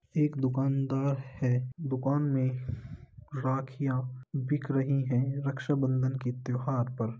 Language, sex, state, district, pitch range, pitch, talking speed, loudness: Hindi, male, Uttar Pradesh, Muzaffarnagar, 125-140 Hz, 130 Hz, 110 wpm, -31 LUFS